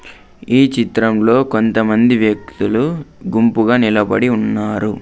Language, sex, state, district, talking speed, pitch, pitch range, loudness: Telugu, male, Andhra Pradesh, Sri Satya Sai, 110 wpm, 115 Hz, 110-125 Hz, -14 LUFS